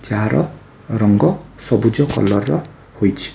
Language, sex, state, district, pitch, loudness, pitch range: Odia, male, Odisha, Khordha, 115 Hz, -17 LUFS, 105-145 Hz